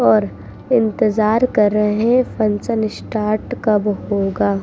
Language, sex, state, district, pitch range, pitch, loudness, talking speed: Hindi, female, Uttar Pradesh, Muzaffarnagar, 210-225 Hz, 215 Hz, -17 LUFS, 115 wpm